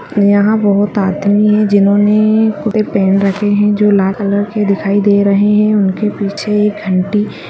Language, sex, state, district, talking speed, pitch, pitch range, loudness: Hindi, female, Bihar, Bhagalpur, 160 wpm, 205 Hz, 200-210 Hz, -12 LUFS